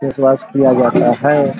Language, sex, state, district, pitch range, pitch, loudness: Hindi, male, Bihar, Sitamarhi, 130-140 Hz, 135 Hz, -13 LUFS